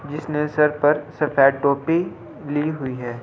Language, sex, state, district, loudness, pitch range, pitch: Hindi, male, Delhi, New Delhi, -21 LUFS, 140-150 Hz, 150 Hz